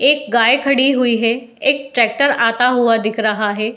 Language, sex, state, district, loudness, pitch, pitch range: Hindi, female, Uttar Pradesh, Etah, -15 LUFS, 240 Hz, 225-275 Hz